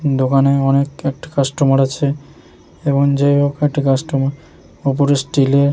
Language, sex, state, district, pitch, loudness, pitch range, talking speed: Bengali, male, West Bengal, Jhargram, 140 Hz, -16 LUFS, 135-145 Hz, 135 wpm